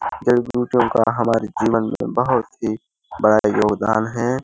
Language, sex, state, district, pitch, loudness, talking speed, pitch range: Hindi, male, Uttar Pradesh, Hamirpur, 115 Hz, -19 LUFS, 150 wpm, 110-120 Hz